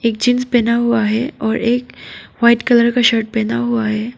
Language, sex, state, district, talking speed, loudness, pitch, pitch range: Hindi, female, Arunachal Pradesh, Papum Pare, 200 wpm, -15 LUFS, 235 Hz, 225-240 Hz